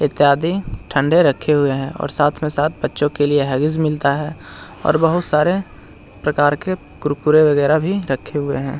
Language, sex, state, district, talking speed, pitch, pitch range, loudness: Hindi, male, Bihar, Jahanabad, 170 wpm, 150 Hz, 140-155 Hz, -17 LUFS